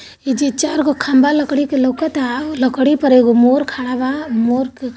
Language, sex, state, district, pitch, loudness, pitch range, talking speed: Hindi, female, Bihar, Gopalganj, 265 Hz, -15 LUFS, 255-290 Hz, 120 wpm